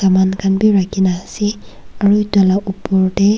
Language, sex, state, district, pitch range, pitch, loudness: Nagamese, female, Nagaland, Kohima, 190-205 Hz, 195 Hz, -15 LUFS